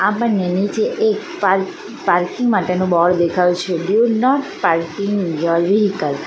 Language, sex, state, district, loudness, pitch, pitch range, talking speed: Gujarati, female, Gujarat, Valsad, -17 LUFS, 190 Hz, 175-210 Hz, 145 wpm